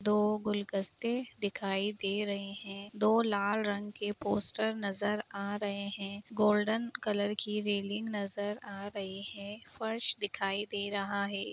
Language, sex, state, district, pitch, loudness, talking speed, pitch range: Hindi, female, Uttar Pradesh, Budaun, 205 Hz, -34 LUFS, 145 wpm, 200-210 Hz